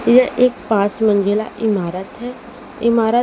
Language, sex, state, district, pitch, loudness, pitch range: Hindi, female, Haryana, Rohtak, 225 Hz, -17 LUFS, 205-245 Hz